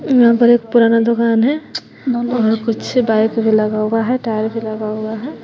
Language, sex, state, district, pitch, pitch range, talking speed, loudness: Hindi, female, Bihar, West Champaran, 230 Hz, 220-240 Hz, 200 wpm, -15 LUFS